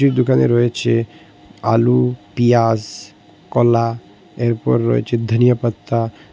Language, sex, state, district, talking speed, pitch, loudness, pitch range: Bengali, male, Assam, Hailakandi, 85 wpm, 115 Hz, -17 LUFS, 105-120 Hz